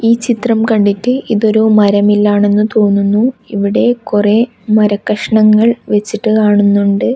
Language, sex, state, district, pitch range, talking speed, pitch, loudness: Malayalam, female, Kerala, Kasaragod, 205-225 Hz, 110 wpm, 215 Hz, -11 LUFS